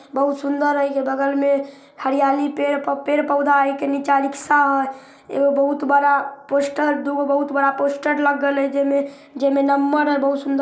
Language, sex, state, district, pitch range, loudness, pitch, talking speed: Maithili, female, Bihar, Samastipur, 275-285 Hz, -19 LUFS, 280 Hz, 170 wpm